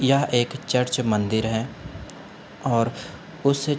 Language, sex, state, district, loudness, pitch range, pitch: Hindi, male, Uttar Pradesh, Budaun, -24 LUFS, 110-140 Hz, 125 Hz